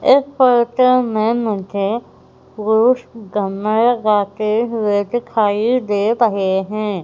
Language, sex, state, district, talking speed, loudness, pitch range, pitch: Hindi, female, Madhya Pradesh, Umaria, 100 wpm, -17 LUFS, 205-240 Hz, 220 Hz